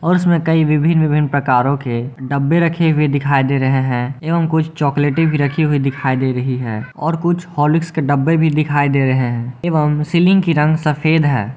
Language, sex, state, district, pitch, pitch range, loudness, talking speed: Hindi, male, Jharkhand, Garhwa, 150 Hz, 135-160 Hz, -16 LUFS, 205 wpm